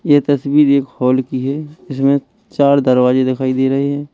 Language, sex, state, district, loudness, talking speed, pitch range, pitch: Hindi, male, Uttar Pradesh, Lalitpur, -15 LUFS, 190 wpm, 130-145 Hz, 140 Hz